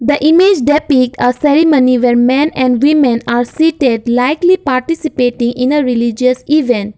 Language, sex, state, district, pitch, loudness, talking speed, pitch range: English, female, Assam, Kamrup Metropolitan, 255 Hz, -11 LUFS, 145 wpm, 245-305 Hz